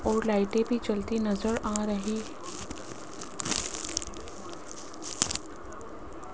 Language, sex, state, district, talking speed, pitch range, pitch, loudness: Hindi, female, Rajasthan, Jaipur, 75 wpm, 210-225 Hz, 220 Hz, -31 LUFS